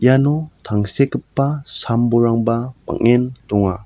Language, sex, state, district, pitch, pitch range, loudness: Garo, male, Meghalaya, South Garo Hills, 120 Hz, 115-135 Hz, -18 LUFS